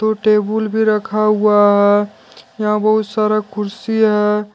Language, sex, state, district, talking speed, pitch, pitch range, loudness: Hindi, male, Jharkhand, Deoghar, 145 wpm, 215 Hz, 210-215 Hz, -15 LUFS